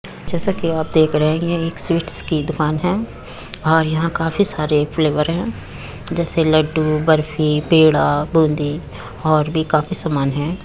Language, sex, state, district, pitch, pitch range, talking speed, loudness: Hindi, female, Uttar Pradesh, Muzaffarnagar, 155 Hz, 150-165 Hz, 160 wpm, -18 LUFS